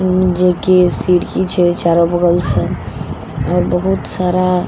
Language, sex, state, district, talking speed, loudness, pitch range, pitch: Maithili, female, Bihar, Katihar, 115 wpm, -14 LUFS, 175-185 Hz, 180 Hz